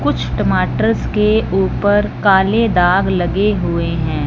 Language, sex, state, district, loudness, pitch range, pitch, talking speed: Hindi, male, Punjab, Fazilka, -15 LUFS, 175-205 Hz, 190 Hz, 125 wpm